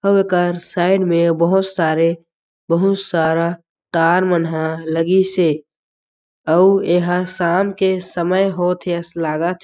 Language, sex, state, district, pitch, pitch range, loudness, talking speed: Chhattisgarhi, male, Chhattisgarh, Jashpur, 175 Hz, 165-185 Hz, -17 LUFS, 135 wpm